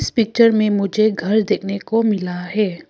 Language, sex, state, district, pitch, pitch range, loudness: Hindi, female, Arunachal Pradesh, Papum Pare, 210 Hz, 195-220 Hz, -18 LUFS